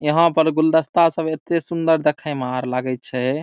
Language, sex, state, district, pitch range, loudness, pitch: Maithili, male, Bihar, Saharsa, 130-165 Hz, -19 LUFS, 155 Hz